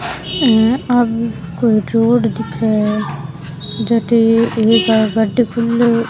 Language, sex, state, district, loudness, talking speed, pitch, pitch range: Rajasthani, female, Rajasthan, Churu, -15 LUFS, 80 wpm, 225 Hz, 220-235 Hz